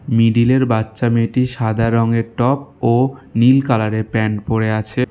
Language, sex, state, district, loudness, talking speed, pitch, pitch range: Bengali, male, West Bengal, Alipurduar, -16 LUFS, 140 wpm, 115 Hz, 110-125 Hz